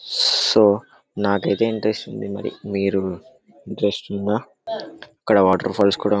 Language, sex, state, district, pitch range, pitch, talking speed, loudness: Telugu, male, Telangana, Karimnagar, 100-110 Hz, 100 Hz, 105 wpm, -20 LUFS